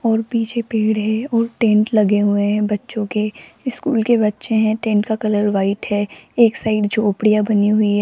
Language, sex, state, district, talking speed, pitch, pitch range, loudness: Hindi, female, Rajasthan, Jaipur, 195 wpm, 215 Hz, 210-225 Hz, -18 LUFS